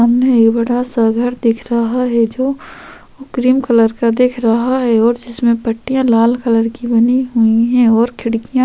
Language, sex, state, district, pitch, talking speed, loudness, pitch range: Hindi, female, Uttar Pradesh, Varanasi, 235 Hz, 180 wpm, -14 LUFS, 230-250 Hz